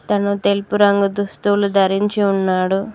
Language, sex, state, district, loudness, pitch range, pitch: Telugu, female, Telangana, Mahabubabad, -17 LUFS, 195-205 Hz, 200 Hz